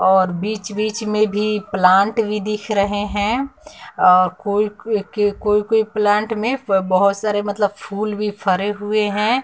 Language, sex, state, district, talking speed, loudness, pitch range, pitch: Hindi, female, Bihar, West Champaran, 140 wpm, -18 LUFS, 200-215 Hz, 210 Hz